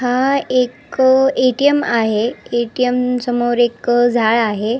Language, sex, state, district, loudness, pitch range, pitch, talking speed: Marathi, female, Maharashtra, Nagpur, -16 LUFS, 235-255 Hz, 245 Hz, 110 wpm